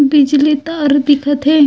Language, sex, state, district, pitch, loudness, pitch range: Chhattisgarhi, female, Chhattisgarh, Raigarh, 290 Hz, -12 LUFS, 285-295 Hz